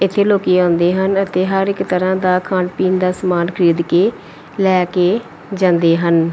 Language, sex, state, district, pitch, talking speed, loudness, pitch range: Punjabi, female, Punjab, Pathankot, 185 Hz, 180 wpm, -15 LUFS, 170-190 Hz